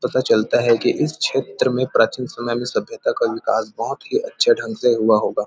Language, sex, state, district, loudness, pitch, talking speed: Hindi, male, Chhattisgarh, Bilaspur, -19 LUFS, 130 Hz, 220 wpm